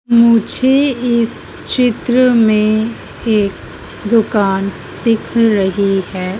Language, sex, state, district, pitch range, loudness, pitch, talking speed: Hindi, female, Madhya Pradesh, Dhar, 200-235 Hz, -14 LUFS, 225 Hz, 85 wpm